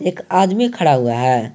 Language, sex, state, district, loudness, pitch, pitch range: Hindi, male, Jharkhand, Garhwa, -16 LUFS, 155 Hz, 125-190 Hz